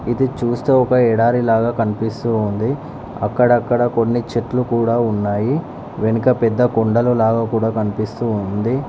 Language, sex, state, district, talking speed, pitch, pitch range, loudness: Telugu, male, Telangana, Nalgonda, 130 wpm, 115 Hz, 110-125 Hz, -17 LUFS